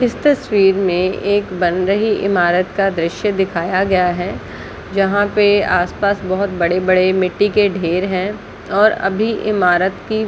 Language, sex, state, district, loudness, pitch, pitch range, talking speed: Hindi, female, Chhattisgarh, Balrampur, -16 LUFS, 195 Hz, 185-205 Hz, 150 wpm